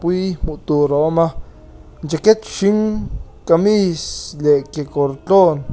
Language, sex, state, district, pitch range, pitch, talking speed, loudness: Mizo, male, Mizoram, Aizawl, 145-190 Hz, 160 Hz, 105 wpm, -17 LUFS